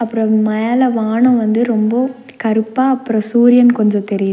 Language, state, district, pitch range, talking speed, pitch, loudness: Tamil, Tamil Nadu, Nilgiris, 220-245 Hz, 140 wpm, 230 Hz, -14 LUFS